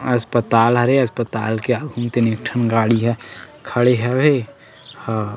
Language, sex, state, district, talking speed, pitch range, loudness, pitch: Chhattisgarhi, male, Chhattisgarh, Sarguja, 155 wpm, 115-125 Hz, -18 LUFS, 120 Hz